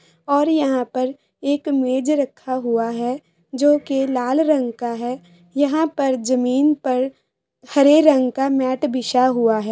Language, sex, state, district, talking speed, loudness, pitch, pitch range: Hindi, female, Bihar, East Champaran, 155 wpm, -19 LUFS, 260 Hz, 245-285 Hz